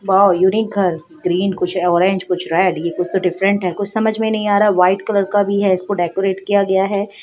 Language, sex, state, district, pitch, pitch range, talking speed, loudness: Hindi, female, Bihar, Begusarai, 195 Hz, 180-200 Hz, 225 wpm, -16 LUFS